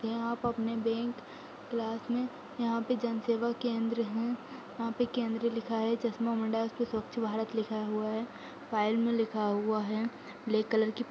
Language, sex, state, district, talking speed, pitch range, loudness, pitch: Hindi, female, Uttar Pradesh, Budaun, 175 wpm, 220-235 Hz, -33 LUFS, 230 Hz